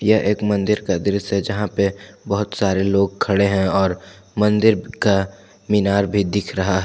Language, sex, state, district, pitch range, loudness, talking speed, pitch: Hindi, male, Jharkhand, Palamu, 95-105 Hz, -19 LUFS, 185 wpm, 100 Hz